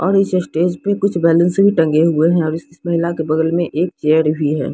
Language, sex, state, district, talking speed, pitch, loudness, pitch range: Hindi, female, Odisha, Sambalpur, 240 wpm, 170 Hz, -16 LUFS, 160-175 Hz